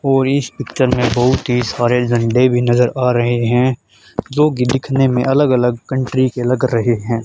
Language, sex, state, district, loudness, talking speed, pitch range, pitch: Hindi, male, Haryana, Charkhi Dadri, -15 LUFS, 200 wpm, 120-130 Hz, 125 Hz